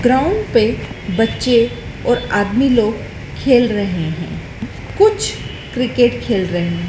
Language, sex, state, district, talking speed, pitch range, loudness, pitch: Hindi, female, Madhya Pradesh, Dhar, 120 wpm, 200-250 Hz, -16 LUFS, 230 Hz